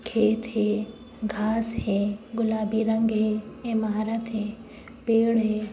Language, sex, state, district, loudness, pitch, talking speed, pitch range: Bhojpuri, female, Uttar Pradesh, Gorakhpur, -26 LUFS, 220 Hz, 115 wpm, 215-230 Hz